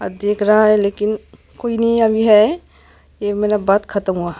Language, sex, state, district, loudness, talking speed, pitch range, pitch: Hindi, female, Maharashtra, Gondia, -16 LUFS, 190 wpm, 200-220 Hz, 210 Hz